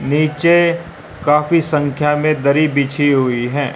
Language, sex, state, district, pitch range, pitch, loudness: Hindi, male, Haryana, Rohtak, 140-155 Hz, 150 Hz, -15 LUFS